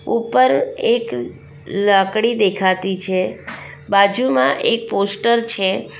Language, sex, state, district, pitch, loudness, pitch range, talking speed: Gujarati, female, Gujarat, Valsad, 200 Hz, -17 LUFS, 190-235 Hz, 90 wpm